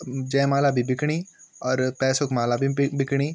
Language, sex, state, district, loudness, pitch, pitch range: Garhwali, male, Uttarakhand, Tehri Garhwal, -24 LUFS, 135 Hz, 130-140 Hz